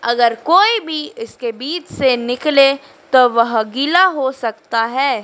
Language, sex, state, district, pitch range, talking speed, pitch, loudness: Hindi, female, Madhya Pradesh, Dhar, 235-305 Hz, 150 wpm, 265 Hz, -15 LUFS